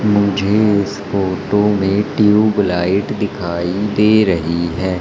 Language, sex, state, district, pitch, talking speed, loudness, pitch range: Hindi, female, Madhya Pradesh, Umaria, 100 Hz, 110 wpm, -15 LUFS, 95-105 Hz